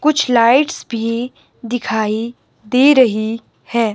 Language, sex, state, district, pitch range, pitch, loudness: Hindi, male, Himachal Pradesh, Shimla, 225-250 Hz, 235 Hz, -15 LUFS